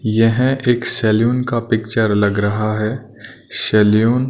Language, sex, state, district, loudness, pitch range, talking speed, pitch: Hindi, male, Punjab, Kapurthala, -16 LUFS, 105-120 Hz, 140 wpm, 110 Hz